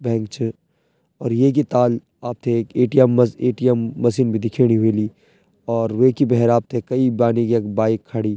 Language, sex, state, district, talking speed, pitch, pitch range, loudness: Garhwali, male, Uttarakhand, Tehri Garhwal, 170 wpm, 120 Hz, 115-125 Hz, -19 LUFS